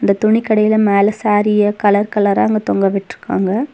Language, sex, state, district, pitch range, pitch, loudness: Tamil, female, Tamil Nadu, Nilgiris, 195-215 Hz, 205 Hz, -14 LUFS